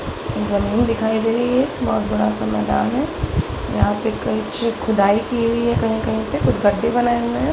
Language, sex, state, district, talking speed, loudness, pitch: Hindi, female, Bihar, Araria, 190 wpm, -19 LUFS, 210 Hz